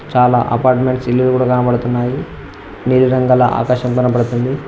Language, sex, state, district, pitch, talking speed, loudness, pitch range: Telugu, male, Telangana, Mahabubabad, 125 Hz, 115 wpm, -14 LUFS, 120-130 Hz